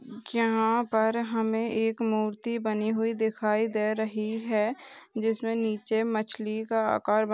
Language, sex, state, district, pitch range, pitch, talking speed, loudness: Hindi, female, Maharashtra, Sindhudurg, 215-225 Hz, 220 Hz, 140 wpm, -28 LUFS